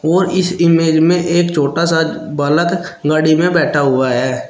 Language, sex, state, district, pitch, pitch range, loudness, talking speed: Hindi, male, Uttar Pradesh, Shamli, 160 Hz, 150-175 Hz, -14 LUFS, 175 wpm